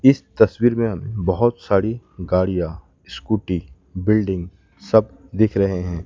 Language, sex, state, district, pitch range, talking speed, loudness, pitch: Hindi, male, West Bengal, Alipurduar, 90-110 Hz, 120 wpm, -20 LUFS, 100 Hz